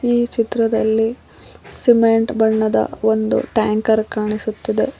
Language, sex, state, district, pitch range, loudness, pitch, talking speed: Kannada, female, Karnataka, Koppal, 220-230 Hz, -17 LUFS, 220 Hz, 85 wpm